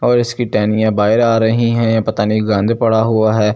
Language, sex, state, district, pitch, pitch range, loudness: Hindi, male, Delhi, New Delhi, 110 Hz, 110-115 Hz, -14 LUFS